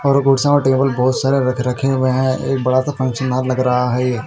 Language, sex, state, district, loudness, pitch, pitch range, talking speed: Hindi, male, Punjab, Fazilka, -16 LUFS, 130 Hz, 125-135 Hz, 255 wpm